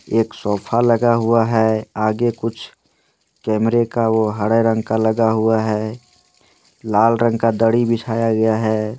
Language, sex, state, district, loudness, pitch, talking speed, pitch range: Hindi, male, Maharashtra, Chandrapur, -17 LUFS, 115 Hz, 145 wpm, 110-115 Hz